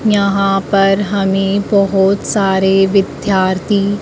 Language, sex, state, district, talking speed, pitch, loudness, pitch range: Hindi, female, Madhya Pradesh, Dhar, 90 wpm, 195 Hz, -13 LUFS, 195-200 Hz